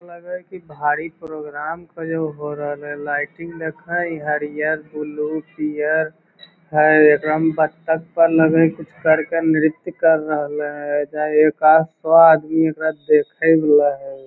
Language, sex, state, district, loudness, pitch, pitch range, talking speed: Magahi, male, Bihar, Lakhisarai, -18 LUFS, 155 Hz, 150-165 Hz, 150 wpm